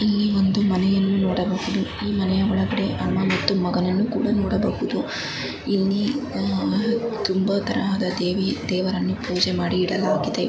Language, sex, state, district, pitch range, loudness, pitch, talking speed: Kannada, female, Karnataka, Chamarajanagar, 185-205 Hz, -22 LUFS, 195 Hz, 115 wpm